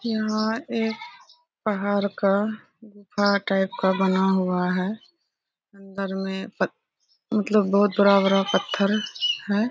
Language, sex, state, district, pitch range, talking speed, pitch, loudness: Hindi, female, Bihar, Araria, 195-220 Hz, 110 wpm, 205 Hz, -23 LUFS